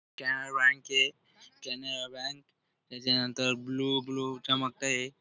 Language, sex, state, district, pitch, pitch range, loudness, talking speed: Marathi, male, Maharashtra, Dhule, 135 Hz, 130-140 Hz, -30 LUFS, 90 wpm